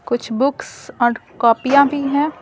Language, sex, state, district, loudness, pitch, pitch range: Hindi, female, Bihar, Patna, -17 LUFS, 275 Hz, 240-285 Hz